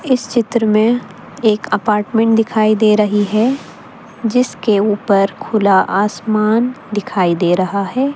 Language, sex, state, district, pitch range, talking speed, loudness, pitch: Hindi, female, Delhi, New Delhi, 205-235 Hz, 125 wpm, -15 LUFS, 215 Hz